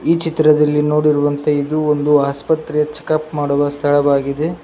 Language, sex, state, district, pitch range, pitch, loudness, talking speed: Kannada, male, Karnataka, Koppal, 145-155 Hz, 150 Hz, -16 LUFS, 130 wpm